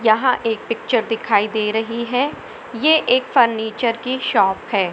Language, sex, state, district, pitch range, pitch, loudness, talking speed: Hindi, male, Madhya Pradesh, Katni, 220-255 Hz, 230 Hz, -18 LUFS, 160 wpm